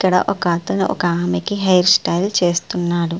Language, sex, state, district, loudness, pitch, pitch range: Telugu, female, Andhra Pradesh, Srikakulam, -17 LUFS, 180 Hz, 175-185 Hz